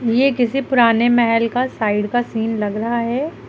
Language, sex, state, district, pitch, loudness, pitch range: Hindi, female, Uttar Pradesh, Lucknow, 235 Hz, -17 LUFS, 225-245 Hz